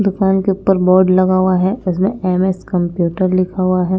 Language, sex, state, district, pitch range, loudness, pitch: Hindi, female, Punjab, Pathankot, 185-190 Hz, -15 LUFS, 185 Hz